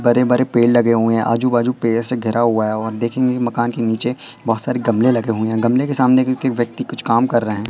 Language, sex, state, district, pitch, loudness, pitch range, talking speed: Hindi, female, Madhya Pradesh, Katni, 120 Hz, -17 LUFS, 115-125 Hz, 265 wpm